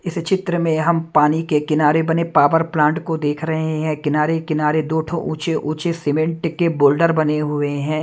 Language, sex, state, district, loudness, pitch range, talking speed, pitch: Hindi, male, Haryana, Jhajjar, -18 LUFS, 150-165 Hz, 185 wpm, 155 Hz